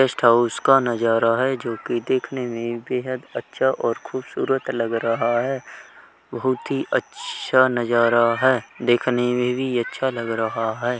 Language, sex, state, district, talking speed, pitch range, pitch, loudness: Hindi, male, Uttar Pradesh, Hamirpur, 145 wpm, 115-130 Hz, 120 Hz, -21 LUFS